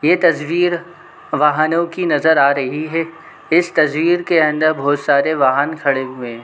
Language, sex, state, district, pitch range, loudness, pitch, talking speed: Hindi, male, Chhattisgarh, Bilaspur, 140-165 Hz, -16 LUFS, 155 Hz, 175 wpm